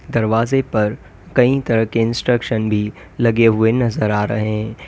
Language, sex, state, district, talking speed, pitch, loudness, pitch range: Hindi, male, Uttar Pradesh, Lalitpur, 160 wpm, 110 Hz, -17 LUFS, 105-120 Hz